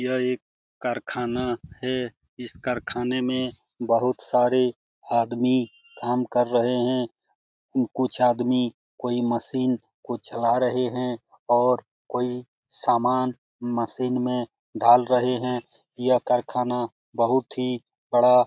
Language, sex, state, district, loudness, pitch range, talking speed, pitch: Hindi, male, Bihar, Jamui, -25 LUFS, 120-125 Hz, 115 wpm, 125 Hz